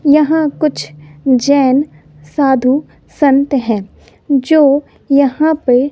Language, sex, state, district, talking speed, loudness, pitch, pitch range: Hindi, female, Bihar, West Champaran, 90 wpm, -13 LUFS, 275 Hz, 250-290 Hz